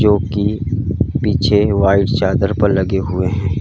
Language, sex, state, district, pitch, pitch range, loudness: Hindi, male, Uttar Pradesh, Lalitpur, 100 Hz, 95-105 Hz, -16 LUFS